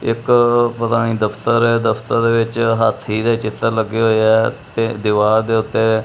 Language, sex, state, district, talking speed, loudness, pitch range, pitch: Punjabi, male, Punjab, Kapurthala, 190 wpm, -16 LUFS, 110-115 Hz, 115 Hz